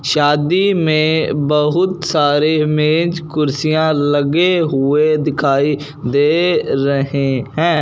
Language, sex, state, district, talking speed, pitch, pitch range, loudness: Hindi, male, Punjab, Fazilka, 90 wpm, 150 Hz, 145-160 Hz, -15 LUFS